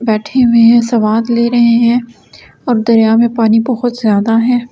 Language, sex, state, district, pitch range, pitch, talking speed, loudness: Hindi, female, Delhi, New Delhi, 225-240 Hz, 235 Hz, 190 wpm, -11 LUFS